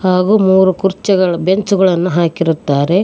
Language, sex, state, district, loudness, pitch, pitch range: Kannada, female, Karnataka, Koppal, -13 LUFS, 185 Hz, 170-195 Hz